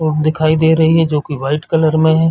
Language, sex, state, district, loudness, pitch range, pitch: Hindi, male, Chhattisgarh, Bilaspur, -14 LUFS, 155-160 Hz, 160 Hz